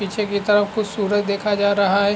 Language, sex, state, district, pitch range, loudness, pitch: Hindi, male, Bihar, Araria, 200-205 Hz, -19 LUFS, 205 Hz